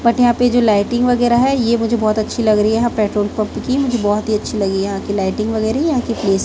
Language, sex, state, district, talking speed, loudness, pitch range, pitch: Hindi, female, Chhattisgarh, Raipur, 295 wpm, -16 LUFS, 210-240 Hz, 220 Hz